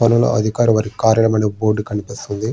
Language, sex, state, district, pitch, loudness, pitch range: Telugu, male, Andhra Pradesh, Srikakulam, 110 Hz, -17 LUFS, 105-115 Hz